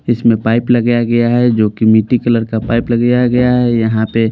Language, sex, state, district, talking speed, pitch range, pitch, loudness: Hindi, male, Haryana, Rohtak, 220 wpm, 110-120 Hz, 120 Hz, -12 LUFS